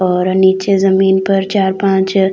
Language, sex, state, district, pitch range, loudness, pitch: Hindi, female, Delhi, New Delhi, 190-195 Hz, -13 LUFS, 190 Hz